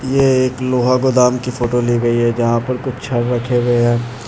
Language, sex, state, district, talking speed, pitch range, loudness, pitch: Hindi, male, Bihar, Muzaffarpur, 225 wpm, 120-130 Hz, -16 LUFS, 125 Hz